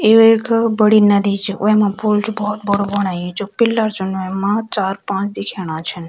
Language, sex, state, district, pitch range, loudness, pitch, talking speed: Garhwali, female, Uttarakhand, Tehri Garhwal, 195-215 Hz, -16 LUFS, 205 Hz, 175 wpm